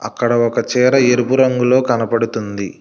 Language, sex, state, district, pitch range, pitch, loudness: Telugu, male, Telangana, Hyderabad, 115-125 Hz, 120 Hz, -15 LUFS